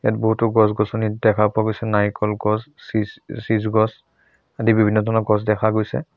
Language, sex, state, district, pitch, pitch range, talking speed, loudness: Assamese, male, Assam, Sonitpur, 110 Hz, 105-110 Hz, 165 wpm, -20 LUFS